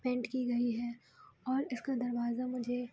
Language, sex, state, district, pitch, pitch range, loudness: Hindi, female, Bihar, Araria, 245 Hz, 240-255 Hz, -36 LUFS